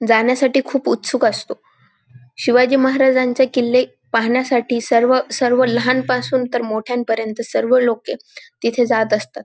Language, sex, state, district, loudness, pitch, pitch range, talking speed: Marathi, female, Maharashtra, Dhule, -17 LUFS, 245 Hz, 230-255 Hz, 120 wpm